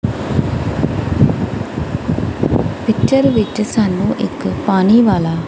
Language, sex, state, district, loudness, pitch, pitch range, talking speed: Punjabi, female, Punjab, Kapurthala, -16 LUFS, 215 Hz, 190-225 Hz, 65 wpm